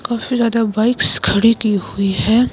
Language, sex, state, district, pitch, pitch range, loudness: Hindi, female, Himachal Pradesh, Shimla, 230 Hz, 215-235 Hz, -15 LUFS